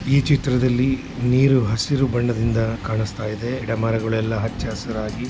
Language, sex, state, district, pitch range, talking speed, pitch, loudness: Kannada, male, Karnataka, Shimoga, 110-130 Hz, 90 wpm, 115 Hz, -21 LUFS